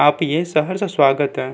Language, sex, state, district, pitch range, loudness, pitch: Hindi, male, Uttarakhand, Tehri Garhwal, 140-175 Hz, -18 LUFS, 155 Hz